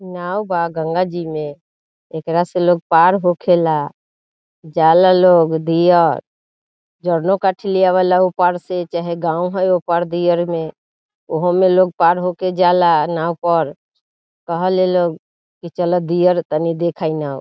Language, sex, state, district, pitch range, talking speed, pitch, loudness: Bhojpuri, female, Bihar, Saran, 165-180 Hz, 140 wpm, 175 Hz, -16 LUFS